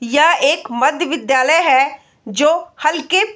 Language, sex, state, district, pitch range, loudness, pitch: Hindi, female, Bihar, Bhagalpur, 265-330 Hz, -15 LUFS, 295 Hz